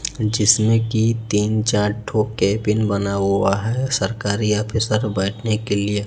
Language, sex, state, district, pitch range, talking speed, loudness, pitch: Hindi, male, Chhattisgarh, Raipur, 100-110 Hz, 140 wpm, -19 LUFS, 105 Hz